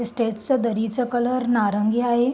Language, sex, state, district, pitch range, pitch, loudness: Marathi, female, Maharashtra, Sindhudurg, 225-245 Hz, 240 Hz, -22 LUFS